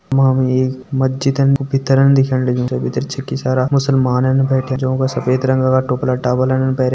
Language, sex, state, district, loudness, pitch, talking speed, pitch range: Hindi, male, Uttarakhand, Tehri Garhwal, -16 LUFS, 130 Hz, 200 wpm, 130-135 Hz